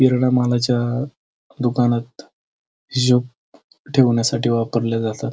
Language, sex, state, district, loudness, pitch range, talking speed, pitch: Marathi, male, Maharashtra, Pune, -19 LUFS, 115-125 Hz, 80 wpm, 120 Hz